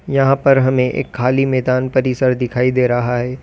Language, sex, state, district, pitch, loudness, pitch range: Hindi, male, Uttar Pradesh, Lalitpur, 130 Hz, -16 LUFS, 125-130 Hz